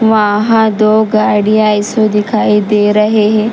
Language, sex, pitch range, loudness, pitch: Hindi, female, 210-215 Hz, -10 LUFS, 215 Hz